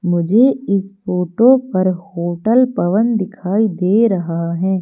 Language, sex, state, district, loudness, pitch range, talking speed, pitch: Hindi, female, Madhya Pradesh, Umaria, -16 LUFS, 180-220 Hz, 125 wpm, 190 Hz